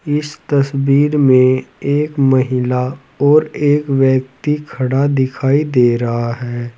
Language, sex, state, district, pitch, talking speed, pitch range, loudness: Hindi, male, Uttar Pradesh, Saharanpur, 135 Hz, 115 wpm, 130-145 Hz, -15 LUFS